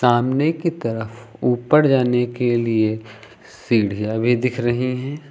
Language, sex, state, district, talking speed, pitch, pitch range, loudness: Hindi, male, Uttar Pradesh, Lucknow, 135 wpm, 120 Hz, 115-125 Hz, -19 LUFS